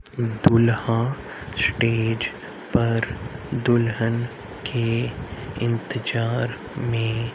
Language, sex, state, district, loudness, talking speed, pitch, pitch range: Hindi, male, Haryana, Rohtak, -24 LUFS, 55 wpm, 115 Hz, 115-120 Hz